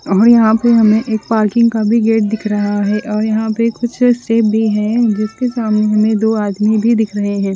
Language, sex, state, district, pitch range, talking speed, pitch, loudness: Hindi, female, Chandigarh, Chandigarh, 210-230 Hz, 230 wpm, 220 Hz, -13 LUFS